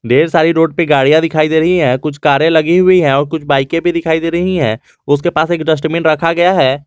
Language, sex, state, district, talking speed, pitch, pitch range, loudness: Hindi, male, Jharkhand, Garhwa, 255 wpm, 160 Hz, 145-170 Hz, -12 LUFS